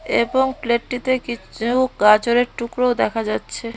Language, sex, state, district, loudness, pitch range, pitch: Bengali, female, West Bengal, Cooch Behar, -19 LUFS, 230-250 Hz, 240 Hz